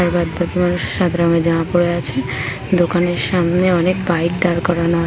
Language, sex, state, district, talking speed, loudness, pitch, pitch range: Bengali, female, West Bengal, Paschim Medinipur, 200 wpm, -17 LUFS, 175 Hz, 170-175 Hz